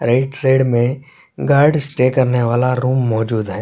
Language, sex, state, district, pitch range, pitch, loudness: Hindi, male, Chhattisgarh, Korba, 120-135 Hz, 125 Hz, -16 LUFS